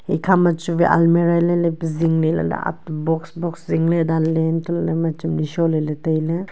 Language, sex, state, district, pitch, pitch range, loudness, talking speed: Wancho, female, Arunachal Pradesh, Longding, 165 Hz, 160-170 Hz, -19 LUFS, 200 wpm